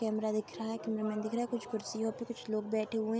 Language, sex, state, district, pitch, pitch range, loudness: Hindi, female, Uttar Pradesh, Jalaun, 220 Hz, 215-225 Hz, -36 LUFS